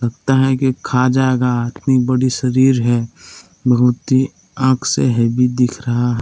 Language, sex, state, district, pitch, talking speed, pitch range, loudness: Hindi, male, Jharkhand, Palamu, 125 Hz, 145 wpm, 120-130 Hz, -16 LUFS